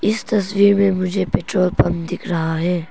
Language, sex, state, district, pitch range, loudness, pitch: Hindi, female, Arunachal Pradesh, Papum Pare, 175-200 Hz, -18 LUFS, 185 Hz